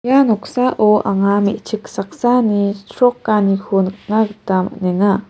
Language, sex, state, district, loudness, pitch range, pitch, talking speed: Garo, female, Meghalaya, West Garo Hills, -16 LUFS, 195-225 Hz, 205 Hz, 100 wpm